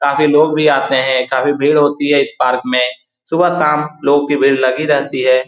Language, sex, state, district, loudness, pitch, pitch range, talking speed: Hindi, male, Bihar, Saran, -13 LUFS, 140 Hz, 130-150 Hz, 220 wpm